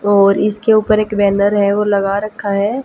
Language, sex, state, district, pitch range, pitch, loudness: Hindi, female, Haryana, Jhajjar, 200-215 Hz, 205 Hz, -14 LUFS